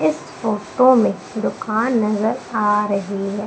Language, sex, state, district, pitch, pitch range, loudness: Hindi, female, Madhya Pradesh, Umaria, 210 Hz, 200-225 Hz, -19 LUFS